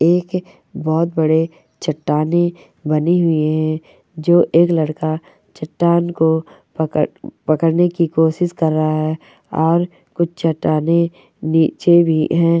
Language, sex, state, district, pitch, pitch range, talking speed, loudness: Hindi, female, Uttar Pradesh, Hamirpur, 160 Hz, 155-170 Hz, 115 wpm, -17 LUFS